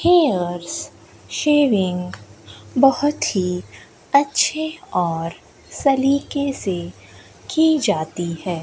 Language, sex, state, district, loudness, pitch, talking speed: Hindi, female, Rajasthan, Bikaner, -20 LUFS, 195 Hz, 75 wpm